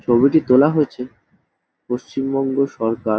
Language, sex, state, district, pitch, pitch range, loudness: Bengali, male, West Bengal, Jhargram, 130 Hz, 120-135 Hz, -18 LUFS